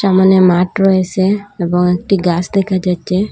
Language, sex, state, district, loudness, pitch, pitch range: Bengali, female, Assam, Hailakandi, -13 LUFS, 185 Hz, 180-195 Hz